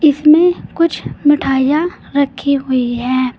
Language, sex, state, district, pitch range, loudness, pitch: Hindi, female, Uttar Pradesh, Saharanpur, 260-305 Hz, -14 LUFS, 280 Hz